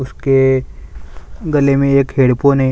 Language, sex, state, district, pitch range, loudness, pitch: Hindi, male, Chhattisgarh, Sukma, 125-140 Hz, -13 LUFS, 135 Hz